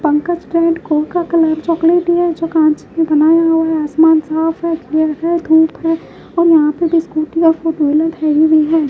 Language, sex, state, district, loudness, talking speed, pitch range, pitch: Hindi, female, Haryana, Jhajjar, -13 LUFS, 210 wpm, 310-330 Hz, 325 Hz